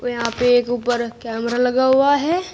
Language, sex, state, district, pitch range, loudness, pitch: Hindi, female, Uttar Pradesh, Shamli, 235-260 Hz, -18 LUFS, 245 Hz